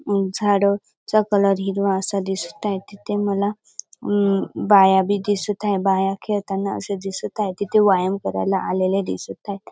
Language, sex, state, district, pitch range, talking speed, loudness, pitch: Marathi, female, Maharashtra, Dhule, 195-205 Hz, 140 wpm, -21 LUFS, 200 Hz